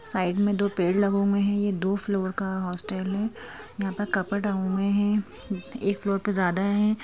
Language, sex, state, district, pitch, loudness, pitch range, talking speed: Hindi, female, Madhya Pradesh, Bhopal, 200 Hz, -26 LUFS, 190-205 Hz, 195 wpm